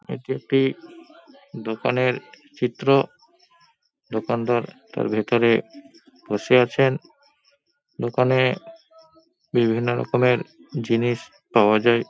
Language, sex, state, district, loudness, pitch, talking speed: Bengali, male, West Bengal, Paschim Medinipur, -22 LUFS, 130 Hz, 75 wpm